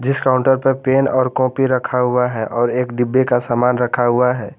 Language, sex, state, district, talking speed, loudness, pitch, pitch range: Hindi, male, Jharkhand, Garhwa, 220 wpm, -16 LUFS, 125 Hz, 125-130 Hz